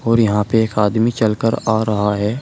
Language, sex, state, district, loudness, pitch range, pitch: Hindi, male, Uttar Pradesh, Shamli, -17 LUFS, 105-115 Hz, 110 Hz